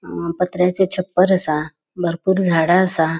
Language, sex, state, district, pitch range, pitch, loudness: Konkani, female, Goa, North and South Goa, 165-185 Hz, 180 Hz, -18 LUFS